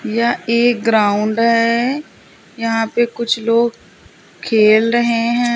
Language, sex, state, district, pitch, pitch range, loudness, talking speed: Hindi, female, Uttar Pradesh, Lalitpur, 230 Hz, 225-235 Hz, -15 LUFS, 120 wpm